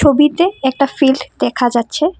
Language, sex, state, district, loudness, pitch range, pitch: Bengali, female, Assam, Kamrup Metropolitan, -15 LUFS, 260-300 Hz, 280 Hz